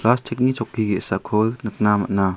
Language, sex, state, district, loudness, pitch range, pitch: Garo, male, Meghalaya, South Garo Hills, -21 LUFS, 105-120 Hz, 110 Hz